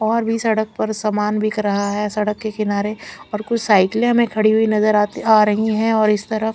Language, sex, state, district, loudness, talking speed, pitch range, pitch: Hindi, female, Chandigarh, Chandigarh, -18 LUFS, 220 wpm, 210-220 Hz, 215 Hz